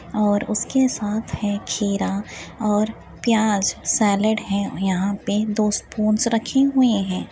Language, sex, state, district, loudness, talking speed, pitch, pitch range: Hindi, female, Bihar, Saharsa, -21 LUFS, 130 wpm, 210 Hz, 200-220 Hz